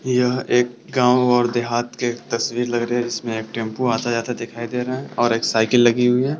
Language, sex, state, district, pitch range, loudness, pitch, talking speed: Hindi, male, Bihar, Sitamarhi, 115-125 Hz, -20 LUFS, 120 Hz, 225 wpm